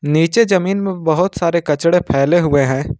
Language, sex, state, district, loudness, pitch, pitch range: Hindi, male, Jharkhand, Ranchi, -15 LUFS, 170 Hz, 145-180 Hz